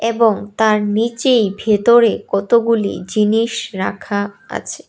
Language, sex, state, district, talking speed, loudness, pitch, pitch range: Bengali, female, Tripura, West Tripura, 100 wpm, -16 LUFS, 220 Hz, 205-230 Hz